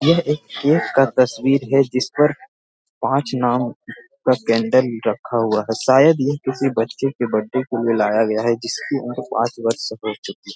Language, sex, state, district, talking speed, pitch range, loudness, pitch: Hindi, male, Bihar, Jamui, 175 wpm, 115-135 Hz, -19 LUFS, 125 Hz